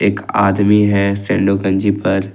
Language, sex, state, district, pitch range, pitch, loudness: Hindi, male, Jharkhand, Ranchi, 95-100 Hz, 100 Hz, -15 LUFS